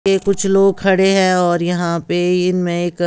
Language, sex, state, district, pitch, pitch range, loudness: Hindi, female, Bihar, West Champaran, 180 Hz, 175-195 Hz, -15 LUFS